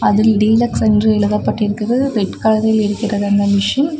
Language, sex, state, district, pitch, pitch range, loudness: Tamil, female, Tamil Nadu, Namakkal, 215 Hz, 205-220 Hz, -15 LUFS